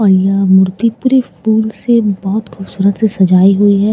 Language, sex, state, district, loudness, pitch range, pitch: Hindi, female, Bihar, Katihar, -12 LUFS, 190-220 Hz, 200 Hz